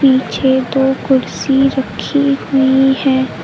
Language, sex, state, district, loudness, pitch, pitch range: Hindi, female, Uttar Pradesh, Lucknow, -14 LUFS, 265 Hz, 260-270 Hz